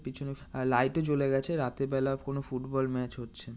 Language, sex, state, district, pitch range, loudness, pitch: Bengali, male, West Bengal, North 24 Parganas, 130-140 Hz, -31 LUFS, 135 Hz